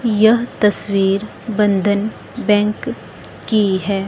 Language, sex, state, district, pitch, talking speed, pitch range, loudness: Hindi, female, Chandigarh, Chandigarh, 210 Hz, 90 wpm, 200-220 Hz, -17 LUFS